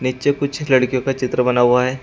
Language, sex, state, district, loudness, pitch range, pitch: Hindi, male, Uttar Pradesh, Shamli, -17 LUFS, 125-135 Hz, 130 Hz